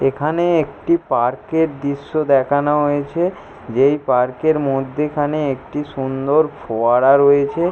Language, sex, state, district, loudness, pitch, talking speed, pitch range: Bengali, male, West Bengal, Jalpaiguri, -17 LUFS, 145 Hz, 115 wpm, 135-155 Hz